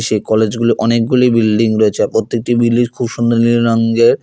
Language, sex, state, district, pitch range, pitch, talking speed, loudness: Bengali, male, West Bengal, Alipurduar, 110-120 Hz, 115 Hz, 185 wpm, -13 LUFS